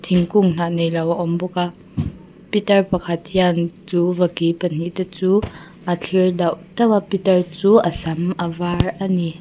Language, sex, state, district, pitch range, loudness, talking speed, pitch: Mizo, female, Mizoram, Aizawl, 170-190 Hz, -19 LUFS, 180 wpm, 180 Hz